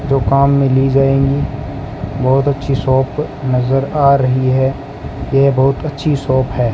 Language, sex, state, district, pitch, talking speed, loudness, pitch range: Hindi, male, Rajasthan, Bikaner, 135 Hz, 150 wpm, -14 LUFS, 130-140 Hz